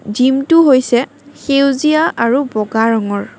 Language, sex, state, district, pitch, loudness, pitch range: Assamese, female, Assam, Kamrup Metropolitan, 265 Hz, -13 LUFS, 225-285 Hz